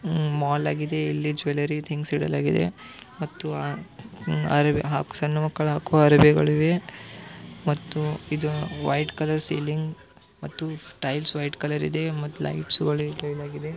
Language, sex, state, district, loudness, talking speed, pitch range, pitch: Kannada, male, Karnataka, Belgaum, -25 LUFS, 120 wpm, 145-155 Hz, 150 Hz